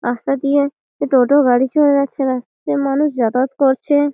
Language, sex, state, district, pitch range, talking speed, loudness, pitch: Bengali, female, West Bengal, Malda, 255-285 Hz, 145 wpm, -16 LUFS, 275 Hz